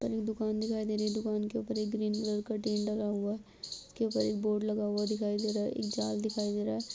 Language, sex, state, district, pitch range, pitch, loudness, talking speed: Hindi, female, Uttar Pradesh, Ghazipur, 205-215 Hz, 210 Hz, -33 LUFS, 265 wpm